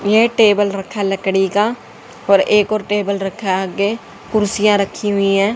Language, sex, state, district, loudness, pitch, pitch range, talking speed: Hindi, female, Haryana, Jhajjar, -16 LUFS, 205 Hz, 195-210 Hz, 170 wpm